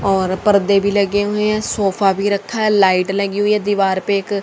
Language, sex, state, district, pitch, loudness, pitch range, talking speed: Hindi, female, Haryana, Jhajjar, 200 Hz, -16 LUFS, 195-205 Hz, 230 wpm